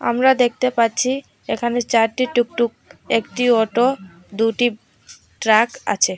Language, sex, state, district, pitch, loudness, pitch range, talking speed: Bengali, female, Assam, Hailakandi, 240 Hz, -19 LUFS, 225-250 Hz, 105 wpm